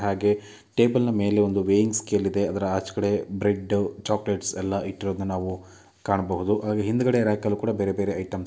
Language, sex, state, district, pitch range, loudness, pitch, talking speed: Kannada, male, Karnataka, Mysore, 95-105 Hz, -25 LUFS, 100 Hz, 155 wpm